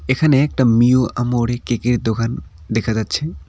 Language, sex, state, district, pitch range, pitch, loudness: Bengali, male, West Bengal, Cooch Behar, 115-130 Hz, 120 Hz, -17 LUFS